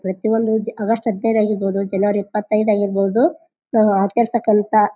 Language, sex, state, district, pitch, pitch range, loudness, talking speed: Kannada, female, Karnataka, Bijapur, 215 Hz, 205-225 Hz, -18 LUFS, 110 wpm